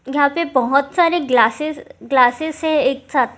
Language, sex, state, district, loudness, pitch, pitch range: Hindi, female, Bihar, Supaul, -17 LUFS, 280 Hz, 260-315 Hz